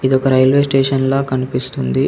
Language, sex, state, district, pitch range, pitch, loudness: Telugu, male, Telangana, Komaram Bheem, 130-135 Hz, 130 Hz, -15 LUFS